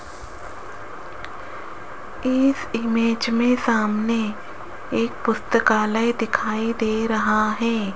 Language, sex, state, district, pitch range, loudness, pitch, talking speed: Hindi, female, Rajasthan, Jaipur, 215-230 Hz, -21 LUFS, 225 Hz, 75 wpm